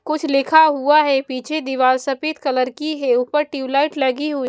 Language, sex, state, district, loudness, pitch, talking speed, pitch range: Hindi, female, Punjab, Kapurthala, -18 LUFS, 280 Hz, 200 wpm, 260-305 Hz